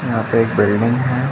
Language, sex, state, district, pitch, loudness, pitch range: Hindi, male, Uttar Pradesh, Jalaun, 115 Hz, -16 LUFS, 110-125 Hz